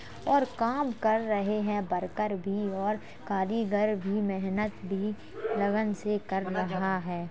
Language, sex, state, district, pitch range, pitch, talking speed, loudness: Hindi, female, Uttar Pradesh, Jalaun, 195-215 Hz, 205 Hz, 140 wpm, -30 LUFS